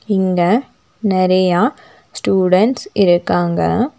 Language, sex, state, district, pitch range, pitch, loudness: Tamil, female, Tamil Nadu, Nilgiris, 185-225 Hz, 190 Hz, -15 LUFS